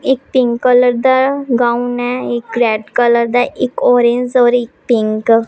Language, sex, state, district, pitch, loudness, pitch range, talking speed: Hindi, male, Punjab, Pathankot, 245 Hz, -13 LUFS, 235-250 Hz, 175 wpm